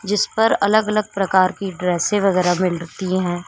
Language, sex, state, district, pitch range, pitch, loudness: Hindi, female, Uttar Pradesh, Shamli, 180-205 Hz, 190 Hz, -18 LUFS